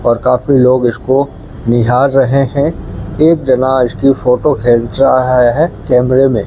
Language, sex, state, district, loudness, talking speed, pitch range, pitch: Hindi, male, Rajasthan, Bikaner, -11 LUFS, 155 wpm, 120-135 Hz, 130 Hz